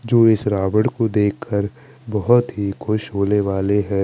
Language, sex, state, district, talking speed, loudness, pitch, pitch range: Hindi, male, Chandigarh, Chandigarh, 180 wpm, -19 LUFS, 105 Hz, 100-115 Hz